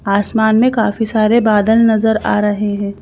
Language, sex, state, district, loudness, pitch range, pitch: Hindi, female, Madhya Pradesh, Bhopal, -13 LUFS, 205-225 Hz, 215 Hz